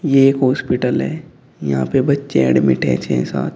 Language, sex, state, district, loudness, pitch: Hindi, male, Uttar Pradesh, Shamli, -17 LUFS, 135 Hz